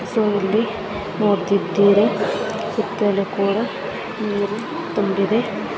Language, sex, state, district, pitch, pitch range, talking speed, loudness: Kannada, male, Karnataka, Mysore, 205 Hz, 200-215 Hz, 75 wpm, -20 LUFS